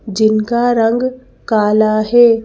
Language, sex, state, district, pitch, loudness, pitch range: Hindi, female, Madhya Pradesh, Bhopal, 225 Hz, -13 LUFS, 215-240 Hz